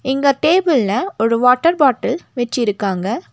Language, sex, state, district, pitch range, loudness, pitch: Tamil, female, Tamil Nadu, Nilgiris, 225-295 Hz, -16 LUFS, 250 Hz